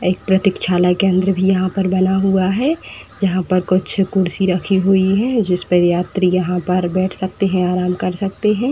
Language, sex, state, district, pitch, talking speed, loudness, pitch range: Hindi, female, Uttar Pradesh, Etah, 185 Hz, 190 wpm, -16 LUFS, 180-195 Hz